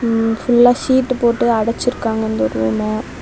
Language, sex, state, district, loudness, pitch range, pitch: Tamil, female, Tamil Nadu, Kanyakumari, -16 LUFS, 220-245 Hz, 230 Hz